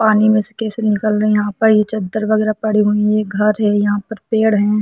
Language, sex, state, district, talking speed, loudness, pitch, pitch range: Hindi, female, Jharkhand, Sahebganj, 285 wpm, -16 LUFS, 215 Hz, 210-215 Hz